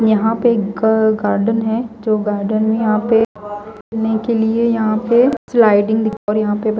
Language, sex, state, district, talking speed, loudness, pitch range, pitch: Hindi, female, Chandigarh, Chandigarh, 160 wpm, -16 LUFS, 215-225 Hz, 220 Hz